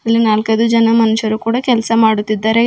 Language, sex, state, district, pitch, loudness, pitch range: Kannada, female, Karnataka, Bidar, 225 Hz, -13 LUFS, 220-230 Hz